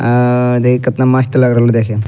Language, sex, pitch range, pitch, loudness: Angika, male, 120-125 Hz, 125 Hz, -12 LUFS